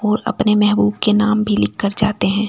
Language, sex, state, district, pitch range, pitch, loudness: Hindi, female, Delhi, New Delhi, 205-215 Hz, 210 Hz, -16 LUFS